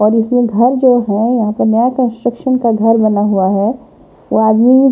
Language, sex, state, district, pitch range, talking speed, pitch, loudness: Hindi, female, Punjab, Pathankot, 215-245 Hz, 205 wpm, 230 Hz, -12 LUFS